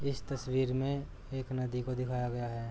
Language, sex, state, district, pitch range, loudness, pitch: Hindi, male, Uttar Pradesh, Jalaun, 125-135 Hz, -36 LUFS, 130 Hz